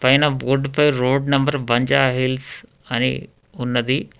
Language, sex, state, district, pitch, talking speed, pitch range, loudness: Telugu, male, Telangana, Hyderabad, 135 Hz, 100 wpm, 125-140 Hz, -19 LUFS